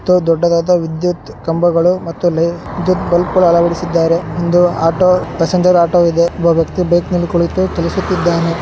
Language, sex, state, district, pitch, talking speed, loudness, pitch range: Kannada, male, Karnataka, Shimoga, 175 Hz, 140 wpm, -14 LUFS, 170-180 Hz